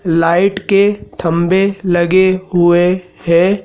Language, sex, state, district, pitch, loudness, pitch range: Hindi, male, Madhya Pradesh, Dhar, 180 Hz, -13 LUFS, 175-195 Hz